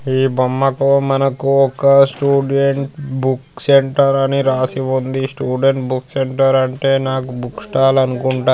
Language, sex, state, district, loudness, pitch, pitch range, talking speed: Telugu, male, Andhra Pradesh, Guntur, -15 LUFS, 135 Hz, 130-135 Hz, 125 wpm